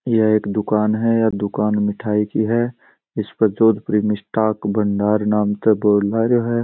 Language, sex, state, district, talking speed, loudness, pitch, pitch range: Marwari, male, Rajasthan, Churu, 160 wpm, -18 LUFS, 105 Hz, 105-110 Hz